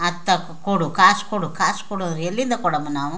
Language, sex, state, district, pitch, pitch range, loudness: Kannada, female, Karnataka, Chamarajanagar, 180 Hz, 165-200 Hz, -20 LUFS